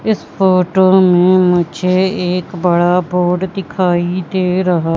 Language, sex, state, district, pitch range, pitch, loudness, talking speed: Hindi, female, Madhya Pradesh, Katni, 175-185 Hz, 180 Hz, -13 LUFS, 120 wpm